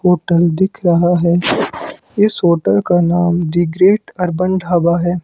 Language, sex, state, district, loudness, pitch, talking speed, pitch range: Hindi, male, Himachal Pradesh, Shimla, -14 LUFS, 175 Hz, 150 wpm, 170-185 Hz